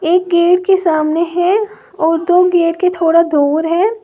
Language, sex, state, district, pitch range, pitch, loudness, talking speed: Hindi, female, Uttar Pradesh, Lalitpur, 330-365 Hz, 345 Hz, -13 LUFS, 180 wpm